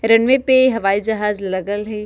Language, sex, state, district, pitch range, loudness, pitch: Bajjika, female, Bihar, Vaishali, 205-230 Hz, -16 LUFS, 215 Hz